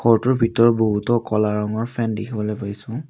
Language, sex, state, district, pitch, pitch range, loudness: Assamese, male, Assam, Kamrup Metropolitan, 115 Hz, 105-115 Hz, -20 LUFS